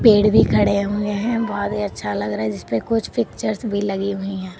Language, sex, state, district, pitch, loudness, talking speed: Hindi, female, Uttar Pradesh, Lalitpur, 200 Hz, -20 LUFS, 235 wpm